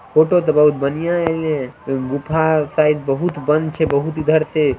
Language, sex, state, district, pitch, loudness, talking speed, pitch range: Maithili, male, Bihar, Samastipur, 155 Hz, -17 LUFS, 175 wpm, 145-160 Hz